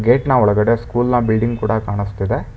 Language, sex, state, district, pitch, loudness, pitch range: Kannada, male, Karnataka, Bangalore, 115 Hz, -17 LUFS, 105-120 Hz